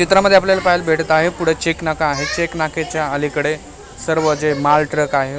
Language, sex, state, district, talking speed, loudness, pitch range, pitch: Marathi, male, Maharashtra, Mumbai Suburban, 190 wpm, -16 LUFS, 150-170 Hz, 155 Hz